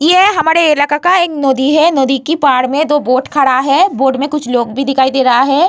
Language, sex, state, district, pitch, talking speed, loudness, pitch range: Hindi, female, Bihar, Vaishali, 280 Hz, 240 wpm, -11 LUFS, 265-315 Hz